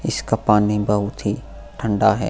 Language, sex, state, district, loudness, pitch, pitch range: Hindi, male, Goa, North and South Goa, -20 LUFS, 105 Hz, 105-110 Hz